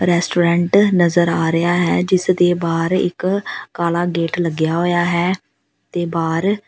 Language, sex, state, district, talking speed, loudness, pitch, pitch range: Punjabi, female, Punjab, Pathankot, 155 wpm, -17 LUFS, 175 Hz, 165-180 Hz